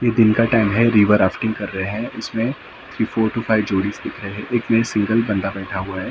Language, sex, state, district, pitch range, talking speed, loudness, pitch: Hindi, male, Maharashtra, Mumbai Suburban, 100-115 Hz, 255 wpm, -19 LUFS, 110 Hz